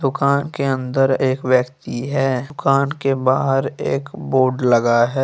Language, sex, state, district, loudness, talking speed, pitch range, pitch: Hindi, male, Jharkhand, Deoghar, -18 LUFS, 150 wpm, 130-140 Hz, 135 Hz